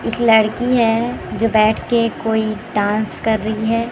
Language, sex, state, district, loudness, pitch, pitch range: Hindi, female, Chhattisgarh, Raipur, -17 LUFS, 220 Hz, 215-230 Hz